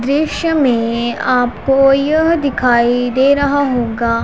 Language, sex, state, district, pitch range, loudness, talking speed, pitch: Hindi, female, Punjab, Pathankot, 240-285 Hz, -14 LUFS, 115 wpm, 260 Hz